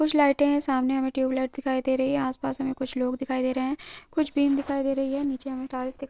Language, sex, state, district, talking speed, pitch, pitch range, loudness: Hindi, female, Uttarakhand, Uttarkashi, 295 wpm, 270 Hz, 260-280 Hz, -26 LUFS